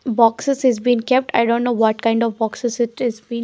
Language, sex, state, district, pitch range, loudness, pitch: English, female, Haryana, Jhajjar, 230-245 Hz, -18 LUFS, 235 Hz